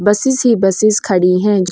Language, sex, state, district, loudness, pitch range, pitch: Hindi, female, Goa, North and South Goa, -13 LUFS, 185-220 Hz, 205 Hz